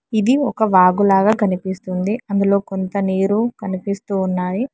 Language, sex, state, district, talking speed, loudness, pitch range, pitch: Telugu, male, Telangana, Hyderabad, 125 wpm, -18 LUFS, 190-215 Hz, 200 Hz